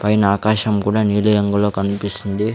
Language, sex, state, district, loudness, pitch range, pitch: Telugu, male, Andhra Pradesh, Sri Satya Sai, -17 LUFS, 100-105 Hz, 105 Hz